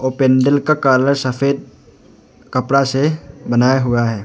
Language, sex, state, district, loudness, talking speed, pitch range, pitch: Hindi, male, Arunachal Pradesh, Lower Dibang Valley, -15 LUFS, 125 wpm, 130-140 Hz, 130 Hz